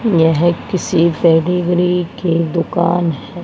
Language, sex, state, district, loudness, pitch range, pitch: Hindi, female, Haryana, Charkhi Dadri, -15 LUFS, 165-175 Hz, 170 Hz